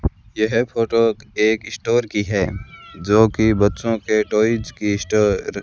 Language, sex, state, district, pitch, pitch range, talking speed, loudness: Hindi, male, Rajasthan, Bikaner, 110 Hz, 105-115 Hz, 150 wpm, -19 LUFS